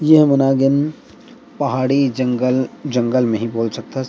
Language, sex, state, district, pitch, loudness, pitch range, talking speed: Chhattisgarhi, male, Chhattisgarh, Rajnandgaon, 130 Hz, -17 LUFS, 125-140 Hz, 160 wpm